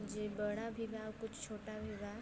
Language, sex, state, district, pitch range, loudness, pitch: Bhojpuri, female, Uttar Pradesh, Varanasi, 210-220 Hz, -44 LUFS, 215 Hz